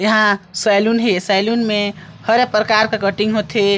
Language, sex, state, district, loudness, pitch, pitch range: Chhattisgarhi, male, Chhattisgarh, Sarguja, -16 LUFS, 210 Hz, 200-220 Hz